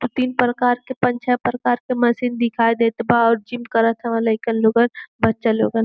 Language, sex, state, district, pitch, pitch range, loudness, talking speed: Bhojpuri, female, Uttar Pradesh, Gorakhpur, 240 Hz, 230-245 Hz, -19 LUFS, 195 wpm